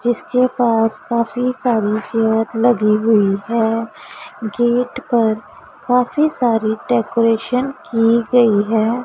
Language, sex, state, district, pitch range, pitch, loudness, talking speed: Hindi, female, Punjab, Pathankot, 220-245 Hz, 230 Hz, -17 LUFS, 105 wpm